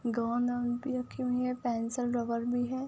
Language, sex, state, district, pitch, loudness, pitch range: Hindi, female, Uttar Pradesh, Budaun, 245 Hz, -32 LUFS, 240-250 Hz